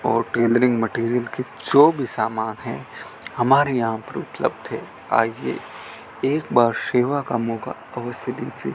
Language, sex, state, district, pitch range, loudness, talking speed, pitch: Hindi, male, Rajasthan, Bikaner, 115-130 Hz, -22 LUFS, 145 wpm, 120 Hz